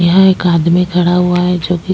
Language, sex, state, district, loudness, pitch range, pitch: Hindi, female, Chhattisgarh, Jashpur, -12 LUFS, 175-180 Hz, 180 Hz